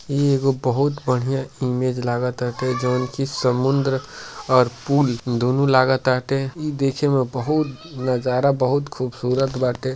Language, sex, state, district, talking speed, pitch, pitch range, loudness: Bhojpuri, male, Uttar Pradesh, Deoria, 120 wpm, 130 Hz, 125-140 Hz, -21 LUFS